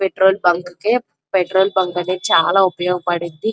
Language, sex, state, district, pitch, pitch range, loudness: Telugu, female, Andhra Pradesh, Krishna, 185 Hz, 180-195 Hz, -17 LUFS